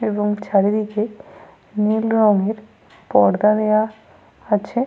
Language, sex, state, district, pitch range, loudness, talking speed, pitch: Bengali, female, Jharkhand, Sahebganj, 210-215 Hz, -19 LUFS, 85 wpm, 215 Hz